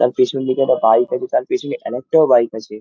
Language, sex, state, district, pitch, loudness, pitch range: Bengali, male, West Bengal, Dakshin Dinajpur, 125 Hz, -17 LUFS, 115-135 Hz